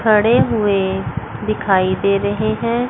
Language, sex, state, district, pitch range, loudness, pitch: Hindi, female, Chandigarh, Chandigarh, 195-225 Hz, -17 LUFS, 210 Hz